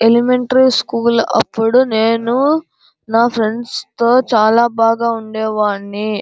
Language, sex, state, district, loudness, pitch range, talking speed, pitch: Telugu, male, Andhra Pradesh, Anantapur, -14 LUFS, 220-245 Hz, 95 wpm, 230 Hz